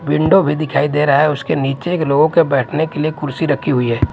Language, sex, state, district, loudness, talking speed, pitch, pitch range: Hindi, male, Chhattisgarh, Raipur, -15 LUFS, 260 wpm, 150 Hz, 140-155 Hz